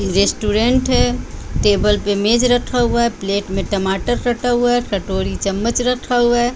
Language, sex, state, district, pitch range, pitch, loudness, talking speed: Hindi, female, Bihar, Patna, 200-245 Hz, 225 Hz, -17 LUFS, 175 wpm